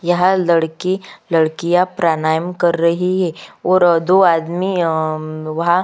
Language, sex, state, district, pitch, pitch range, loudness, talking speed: Hindi, female, Chhattisgarh, Kabirdham, 170 Hz, 160-180 Hz, -16 LUFS, 115 wpm